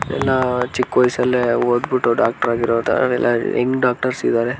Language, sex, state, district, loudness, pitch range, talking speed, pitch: Kannada, male, Karnataka, Dharwad, -18 LUFS, 120-125 Hz, 145 wpm, 125 Hz